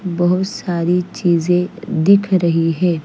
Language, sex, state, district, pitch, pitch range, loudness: Hindi, female, Chandigarh, Chandigarh, 180 Hz, 170-185 Hz, -16 LUFS